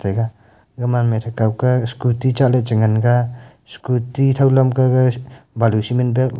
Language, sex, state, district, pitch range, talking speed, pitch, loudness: Wancho, male, Arunachal Pradesh, Longding, 115-130 Hz, 160 wpm, 125 Hz, -17 LUFS